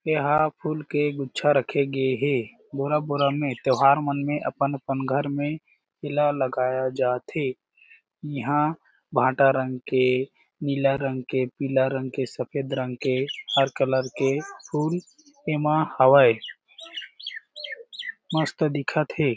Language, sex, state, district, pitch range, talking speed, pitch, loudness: Chhattisgarhi, male, Chhattisgarh, Jashpur, 130-150 Hz, 125 wpm, 140 Hz, -24 LUFS